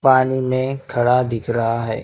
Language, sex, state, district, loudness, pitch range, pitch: Hindi, male, Maharashtra, Gondia, -19 LUFS, 115-130 Hz, 125 Hz